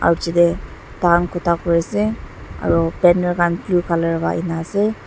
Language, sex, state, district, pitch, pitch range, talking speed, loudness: Nagamese, female, Nagaland, Dimapur, 170 Hz, 165-175 Hz, 140 wpm, -18 LUFS